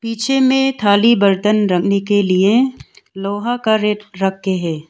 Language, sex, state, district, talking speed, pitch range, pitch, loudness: Hindi, female, Arunachal Pradesh, Longding, 145 wpm, 195-230 Hz, 205 Hz, -15 LUFS